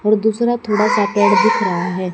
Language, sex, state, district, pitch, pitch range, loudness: Hindi, female, Haryana, Jhajjar, 210 Hz, 185-220 Hz, -16 LUFS